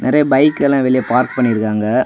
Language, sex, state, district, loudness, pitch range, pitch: Tamil, male, Tamil Nadu, Kanyakumari, -14 LUFS, 115-140 Hz, 130 Hz